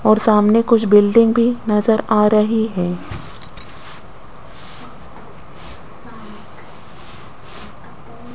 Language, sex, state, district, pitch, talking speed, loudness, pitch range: Hindi, female, Rajasthan, Jaipur, 215 Hz, 65 wpm, -15 LUFS, 210-230 Hz